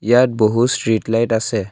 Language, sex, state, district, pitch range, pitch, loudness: Assamese, male, Assam, Kamrup Metropolitan, 110-120 Hz, 115 Hz, -16 LUFS